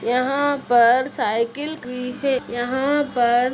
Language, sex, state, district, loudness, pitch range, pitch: Hindi, female, Uttar Pradesh, Etah, -20 LUFS, 240-275 Hz, 250 Hz